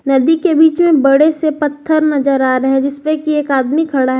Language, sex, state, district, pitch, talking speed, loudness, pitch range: Hindi, female, Jharkhand, Garhwa, 295 Hz, 245 wpm, -13 LUFS, 270-310 Hz